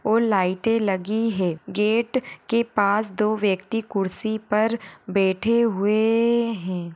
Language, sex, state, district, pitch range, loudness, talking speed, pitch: Hindi, female, Maharashtra, Sindhudurg, 195-230 Hz, -22 LUFS, 110 wpm, 215 Hz